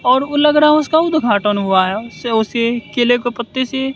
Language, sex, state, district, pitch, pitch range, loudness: Hindi, male, Bihar, West Champaran, 245 Hz, 230-290 Hz, -15 LUFS